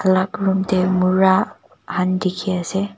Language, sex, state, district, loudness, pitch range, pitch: Nagamese, female, Nagaland, Kohima, -19 LUFS, 185-190 Hz, 185 Hz